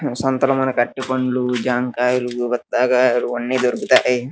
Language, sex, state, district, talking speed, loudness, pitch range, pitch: Telugu, male, Andhra Pradesh, Guntur, 110 wpm, -18 LUFS, 125-130 Hz, 125 Hz